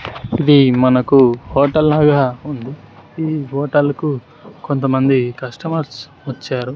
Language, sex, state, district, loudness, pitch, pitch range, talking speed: Telugu, male, Andhra Pradesh, Sri Satya Sai, -15 LUFS, 140 Hz, 130-150 Hz, 90 wpm